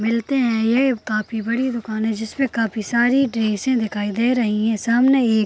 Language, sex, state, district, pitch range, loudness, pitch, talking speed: Hindi, female, Bihar, Purnia, 220-250 Hz, -20 LUFS, 230 Hz, 175 wpm